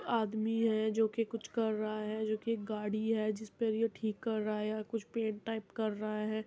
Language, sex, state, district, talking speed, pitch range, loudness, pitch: Hindi, male, Uttar Pradesh, Muzaffarnagar, 225 wpm, 215-225 Hz, -35 LUFS, 220 Hz